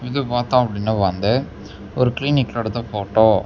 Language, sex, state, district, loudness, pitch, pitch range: Tamil, male, Tamil Nadu, Namakkal, -19 LUFS, 115 Hz, 100-125 Hz